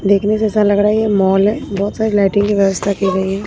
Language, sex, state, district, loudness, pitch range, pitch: Hindi, female, Bihar, Katihar, -15 LUFS, 195-210 Hz, 200 Hz